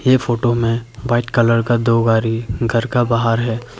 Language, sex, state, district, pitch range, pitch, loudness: Hindi, male, Arunachal Pradesh, Papum Pare, 115-120 Hz, 115 Hz, -17 LUFS